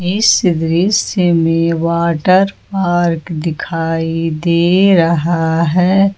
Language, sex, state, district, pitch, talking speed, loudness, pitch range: Hindi, female, Jharkhand, Ranchi, 170 Hz, 85 wpm, -13 LUFS, 165-185 Hz